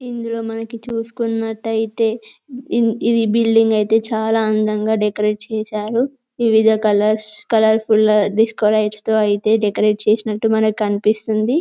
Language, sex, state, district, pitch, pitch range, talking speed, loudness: Telugu, female, Telangana, Karimnagar, 220 Hz, 215-225 Hz, 110 wpm, -17 LUFS